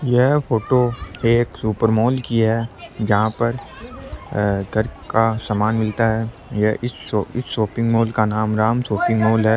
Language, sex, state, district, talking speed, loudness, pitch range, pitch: Rajasthani, male, Rajasthan, Churu, 150 wpm, -19 LUFS, 110-120 Hz, 115 Hz